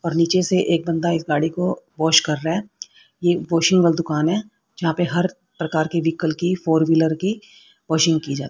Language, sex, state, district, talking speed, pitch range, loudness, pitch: Hindi, female, Haryana, Rohtak, 210 wpm, 160-180 Hz, -20 LUFS, 170 Hz